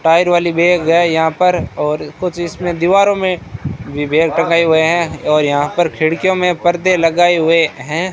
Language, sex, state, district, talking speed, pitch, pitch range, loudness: Hindi, male, Rajasthan, Bikaner, 160 wpm, 170 Hz, 155-175 Hz, -14 LUFS